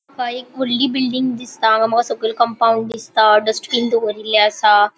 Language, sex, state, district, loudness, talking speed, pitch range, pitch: Konkani, female, Goa, North and South Goa, -16 LUFS, 155 wpm, 220-250 Hz, 230 Hz